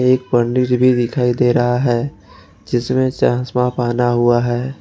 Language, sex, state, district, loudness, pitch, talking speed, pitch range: Hindi, male, Jharkhand, Ranchi, -16 LUFS, 125 Hz, 160 wpm, 120-125 Hz